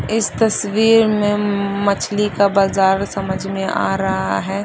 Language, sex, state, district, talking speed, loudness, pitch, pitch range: Hindi, female, Bihar, Madhepura, 155 wpm, -17 LUFS, 200 Hz, 195-210 Hz